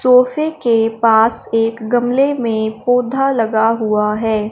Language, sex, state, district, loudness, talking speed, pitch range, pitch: Hindi, female, Punjab, Fazilka, -15 LUFS, 135 wpm, 220-250 Hz, 230 Hz